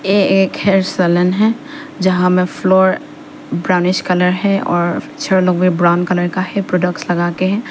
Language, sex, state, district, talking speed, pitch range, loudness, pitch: Hindi, female, Arunachal Pradesh, Papum Pare, 170 wpm, 180-195 Hz, -15 LUFS, 185 Hz